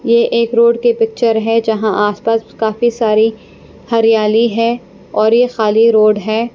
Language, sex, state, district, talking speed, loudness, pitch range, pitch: Hindi, female, Punjab, Pathankot, 155 wpm, -13 LUFS, 215-235 Hz, 225 Hz